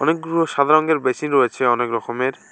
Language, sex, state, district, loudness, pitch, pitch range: Bengali, male, West Bengal, Alipurduar, -19 LUFS, 140 Hz, 125-160 Hz